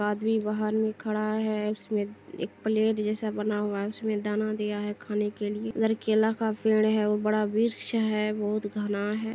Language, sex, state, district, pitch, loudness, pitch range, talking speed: Hindi, female, Bihar, Saharsa, 215 Hz, -28 LUFS, 210-220 Hz, 200 wpm